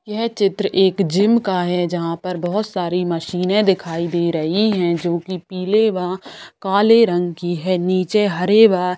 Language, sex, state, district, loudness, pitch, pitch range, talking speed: Hindi, female, Bihar, Saran, -18 LUFS, 185 Hz, 175-205 Hz, 175 wpm